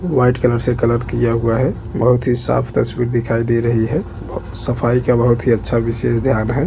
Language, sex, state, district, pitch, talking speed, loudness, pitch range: Hindi, male, Chhattisgarh, Bastar, 120 Hz, 205 wpm, -16 LUFS, 115-125 Hz